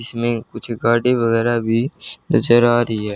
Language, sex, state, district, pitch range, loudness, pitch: Hindi, male, Haryana, Charkhi Dadri, 115-120 Hz, -17 LUFS, 115 Hz